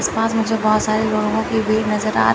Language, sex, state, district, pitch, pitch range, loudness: Hindi, male, Chandigarh, Chandigarh, 215 Hz, 215-220 Hz, -18 LUFS